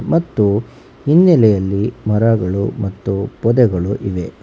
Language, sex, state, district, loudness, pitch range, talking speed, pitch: Kannada, male, Karnataka, Bangalore, -16 LUFS, 100-120 Hz, 80 wpm, 105 Hz